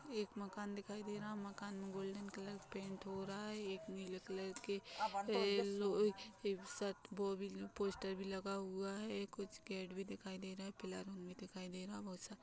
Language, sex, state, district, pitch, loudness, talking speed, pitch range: Hindi, female, Chhattisgarh, Kabirdham, 200 Hz, -45 LUFS, 205 wpm, 195-205 Hz